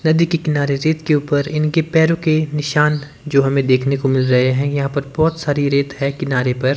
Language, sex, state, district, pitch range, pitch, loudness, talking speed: Hindi, male, Himachal Pradesh, Shimla, 140-155 Hz, 145 Hz, -17 LUFS, 220 wpm